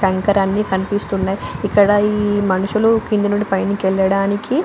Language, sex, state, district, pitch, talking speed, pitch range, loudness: Telugu, female, Andhra Pradesh, Anantapur, 200 Hz, 155 wpm, 195-205 Hz, -17 LUFS